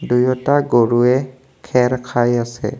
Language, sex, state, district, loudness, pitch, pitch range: Assamese, male, Assam, Kamrup Metropolitan, -16 LUFS, 125 Hz, 120-130 Hz